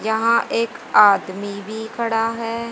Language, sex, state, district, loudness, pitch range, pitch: Hindi, female, Haryana, Jhajjar, -19 LUFS, 210-230 Hz, 225 Hz